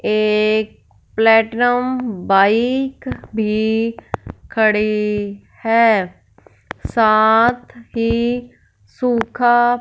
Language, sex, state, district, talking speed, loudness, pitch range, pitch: Hindi, female, Punjab, Fazilka, 55 wpm, -16 LUFS, 215-240 Hz, 225 Hz